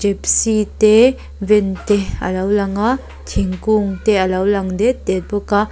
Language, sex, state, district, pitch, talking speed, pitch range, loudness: Mizo, female, Mizoram, Aizawl, 205 Hz, 180 wpm, 195-215 Hz, -16 LUFS